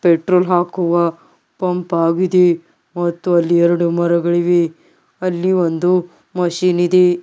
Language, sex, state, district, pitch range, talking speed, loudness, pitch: Kannada, male, Karnataka, Bidar, 170-180 Hz, 100 wpm, -16 LUFS, 175 Hz